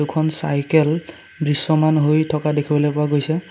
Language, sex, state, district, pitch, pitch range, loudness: Assamese, male, Assam, Sonitpur, 155 Hz, 150-155 Hz, -19 LUFS